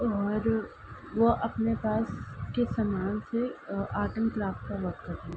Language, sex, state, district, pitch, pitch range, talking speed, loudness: Hindi, female, Uttar Pradesh, Ghazipur, 215 Hz, 195-225 Hz, 170 wpm, -30 LUFS